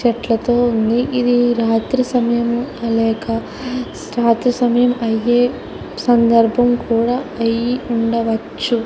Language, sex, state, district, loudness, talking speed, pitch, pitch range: Telugu, female, Andhra Pradesh, Chittoor, -17 LUFS, 80 wpm, 240 Hz, 230-245 Hz